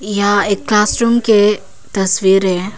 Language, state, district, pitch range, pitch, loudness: Hindi, Arunachal Pradesh, Papum Pare, 195-210 Hz, 205 Hz, -13 LUFS